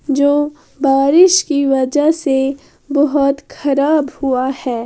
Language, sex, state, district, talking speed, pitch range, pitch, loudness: Hindi, female, Haryana, Jhajjar, 110 wpm, 270-295 Hz, 280 Hz, -14 LUFS